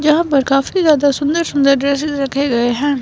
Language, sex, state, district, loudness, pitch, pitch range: Hindi, female, Himachal Pradesh, Shimla, -15 LUFS, 280 Hz, 275-300 Hz